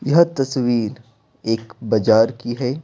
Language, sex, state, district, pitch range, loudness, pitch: Hindi, male, Bihar, Patna, 115-130 Hz, -19 LUFS, 120 Hz